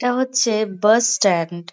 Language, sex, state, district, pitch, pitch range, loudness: Bengali, female, West Bengal, Kolkata, 220 Hz, 190-245 Hz, -18 LUFS